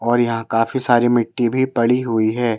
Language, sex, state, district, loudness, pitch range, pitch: Hindi, male, Madhya Pradesh, Bhopal, -18 LUFS, 115-120 Hz, 120 Hz